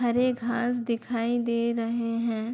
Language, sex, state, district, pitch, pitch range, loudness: Hindi, female, Bihar, Bhagalpur, 235 Hz, 230-240 Hz, -27 LUFS